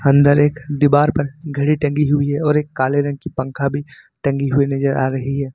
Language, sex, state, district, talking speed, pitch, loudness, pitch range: Hindi, male, Jharkhand, Ranchi, 225 wpm, 145 Hz, -18 LUFS, 140-145 Hz